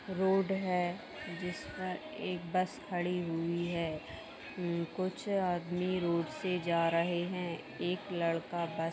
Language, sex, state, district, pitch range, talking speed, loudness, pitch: Hindi, female, Bihar, Madhepura, 170-185 Hz, 135 wpm, -35 LUFS, 175 Hz